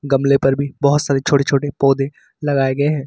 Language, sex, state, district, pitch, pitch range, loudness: Hindi, male, Uttar Pradesh, Lucknow, 140 Hz, 135-145 Hz, -17 LUFS